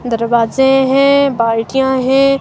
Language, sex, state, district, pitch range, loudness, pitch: Hindi, female, Himachal Pradesh, Shimla, 230-270 Hz, -12 LUFS, 265 Hz